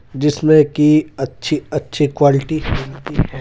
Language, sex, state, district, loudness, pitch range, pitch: Hindi, female, Bihar, Madhepura, -16 LUFS, 145-155 Hz, 150 Hz